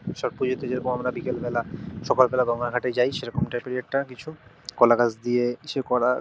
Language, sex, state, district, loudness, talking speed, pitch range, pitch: Bengali, male, West Bengal, North 24 Parganas, -25 LUFS, 205 wpm, 120-130 Hz, 125 Hz